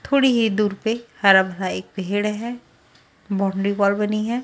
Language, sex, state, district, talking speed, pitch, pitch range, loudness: Hindi, female, Bihar, West Champaran, 190 wpm, 210 Hz, 195-230 Hz, -21 LUFS